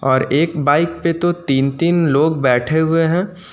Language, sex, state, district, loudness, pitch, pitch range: Hindi, male, Jharkhand, Ranchi, -16 LUFS, 160 Hz, 140-170 Hz